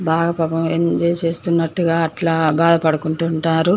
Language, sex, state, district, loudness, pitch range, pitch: Telugu, female, Andhra Pradesh, Chittoor, -18 LUFS, 160-170 Hz, 165 Hz